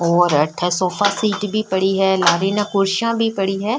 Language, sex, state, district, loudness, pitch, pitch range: Marwari, female, Rajasthan, Nagaur, -18 LUFS, 195 Hz, 180-210 Hz